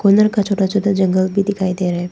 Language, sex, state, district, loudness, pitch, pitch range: Hindi, female, Arunachal Pradesh, Papum Pare, -16 LUFS, 195 Hz, 185-200 Hz